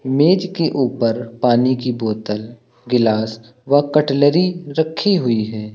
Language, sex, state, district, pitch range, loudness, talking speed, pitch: Hindi, male, Uttar Pradesh, Lucknow, 115-150 Hz, -17 LUFS, 125 wpm, 125 Hz